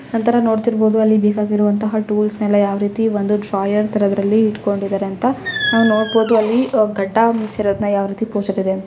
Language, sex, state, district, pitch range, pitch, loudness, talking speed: Kannada, female, Karnataka, Chamarajanagar, 205-225 Hz, 210 Hz, -16 LUFS, 110 wpm